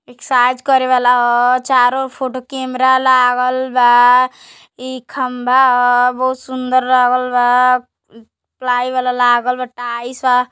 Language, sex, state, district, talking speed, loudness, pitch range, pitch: Hindi, female, Uttar Pradesh, Gorakhpur, 125 wpm, -14 LUFS, 245-255 Hz, 250 Hz